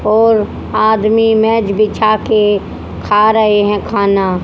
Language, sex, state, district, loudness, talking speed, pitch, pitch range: Hindi, female, Haryana, Rohtak, -12 LUFS, 120 wpm, 215 Hz, 205-220 Hz